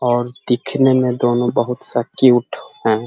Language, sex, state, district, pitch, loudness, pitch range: Hindi, male, Bihar, Jahanabad, 120 Hz, -17 LUFS, 120-130 Hz